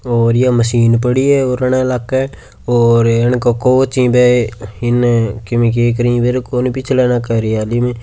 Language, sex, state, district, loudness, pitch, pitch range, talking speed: Marwari, male, Rajasthan, Churu, -13 LUFS, 120 Hz, 115-125 Hz, 185 wpm